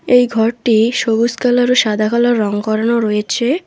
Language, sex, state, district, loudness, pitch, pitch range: Bengali, female, West Bengal, Alipurduar, -14 LUFS, 230 Hz, 215-245 Hz